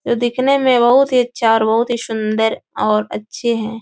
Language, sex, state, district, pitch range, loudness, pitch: Hindi, female, Uttar Pradesh, Etah, 220-245 Hz, -16 LUFS, 235 Hz